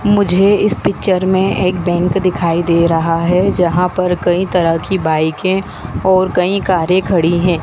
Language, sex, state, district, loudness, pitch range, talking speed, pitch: Hindi, female, Madhya Pradesh, Dhar, -14 LUFS, 170-190 Hz, 165 wpm, 180 Hz